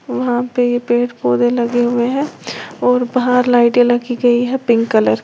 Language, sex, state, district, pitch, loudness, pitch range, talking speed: Hindi, female, Uttar Pradesh, Lalitpur, 245 Hz, -15 LUFS, 240-250 Hz, 185 wpm